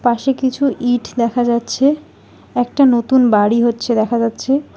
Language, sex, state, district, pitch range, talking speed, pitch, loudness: Bengali, female, West Bengal, Alipurduar, 235-265 Hz, 140 wpm, 245 Hz, -16 LUFS